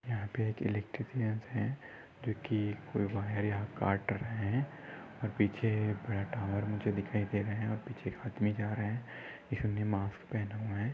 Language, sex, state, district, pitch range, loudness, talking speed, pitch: Hindi, male, Maharashtra, Dhule, 105-115 Hz, -36 LUFS, 190 wpm, 110 Hz